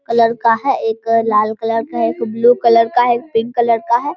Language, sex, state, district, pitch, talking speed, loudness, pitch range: Hindi, female, Bihar, Vaishali, 230 Hz, 260 wpm, -15 LUFS, 225-235 Hz